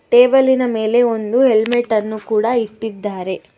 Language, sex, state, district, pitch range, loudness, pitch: Kannada, female, Karnataka, Bangalore, 215-245 Hz, -16 LUFS, 225 Hz